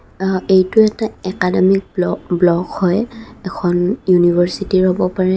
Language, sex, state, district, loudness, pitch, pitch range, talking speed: Assamese, female, Assam, Kamrup Metropolitan, -15 LUFS, 185 Hz, 180-195 Hz, 110 wpm